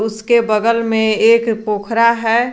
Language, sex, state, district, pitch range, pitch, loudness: Hindi, female, Jharkhand, Garhwa, 220-230 Hz, 225 Hz, -14 LUFS